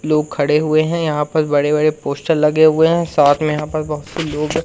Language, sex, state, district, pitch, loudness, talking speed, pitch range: Hindi, male, Madhya Pradesh, Umaria, 155 Hz, -16 LUFS, 245 wpm, 150-155 Hz